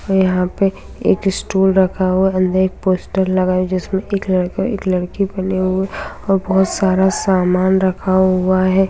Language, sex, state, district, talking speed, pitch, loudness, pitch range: Hindi, female, Bihar, Darbhanga, 190 wpm, 190 Hz, -16 LUFS, 185-190 Hz